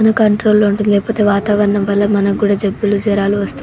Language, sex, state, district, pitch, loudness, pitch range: Telugu, female, Telangana, Nalgonda, 205 Hz, -14 LUFS, 200-210 Hz